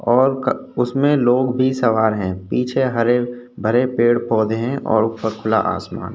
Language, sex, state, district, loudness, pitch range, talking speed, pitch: Hindi, male, Uttar Pradesh, Hamirpur, -18 LUFS, 110-125 Hz, 145 wpm, 120 Hz